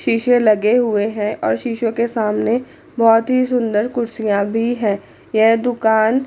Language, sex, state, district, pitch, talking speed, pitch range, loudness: Hindi, female, Chandigarh, Chandigarh, 230 Hz, 155 wpm, 215-245 Hz, -17 LUFS